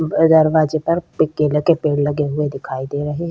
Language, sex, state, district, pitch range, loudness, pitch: Hindi, female, Chhattisgarh, Kabirdham, 150-160 Hz, -17 LUFS, 150 Hz